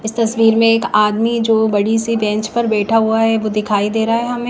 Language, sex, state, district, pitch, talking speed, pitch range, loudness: Hindi, female, Himachal Pradesh, Shimla, 225 Hz, 255 wpm, 215-230 Hz, -15 LUFS